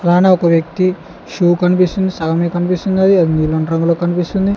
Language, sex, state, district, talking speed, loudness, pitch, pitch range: Telugu, male, Telangana, Hyderabad, 145 wpm, -14 LUFS, 175 Hz, 165-185 Hz